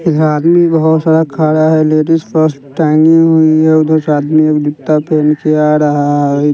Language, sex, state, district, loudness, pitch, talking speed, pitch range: Hindi, male, Bihar, West Champaran, -10 LUFS, 155 Hz, 195 wpm, 150-160 Hz